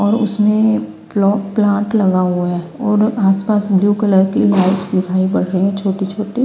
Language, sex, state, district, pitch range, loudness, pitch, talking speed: Hindi, female, Himachal Pradesh, Shimla, 185-210 Hz, -15 LUFS, 200 Hz, 185 wpm